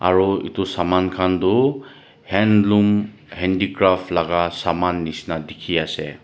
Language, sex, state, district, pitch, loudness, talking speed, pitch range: Nagamese, male, Nagaland, Dimapur, 95 Hz, -19 LUFS, 125 wpm, 90-105 Hz